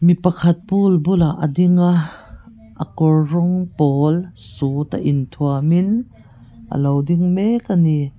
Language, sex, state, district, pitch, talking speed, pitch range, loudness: Mizo, female, Mizoram, Aizawl, 160 Hz, 160 wpm, 140-180 Hz, -17 LUFS